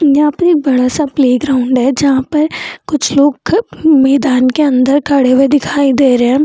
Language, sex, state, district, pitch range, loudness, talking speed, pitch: Hindi, female, Bihar, Jamui, 260-295 Hz, -11 LUFS, 175 wpm, 280 Hz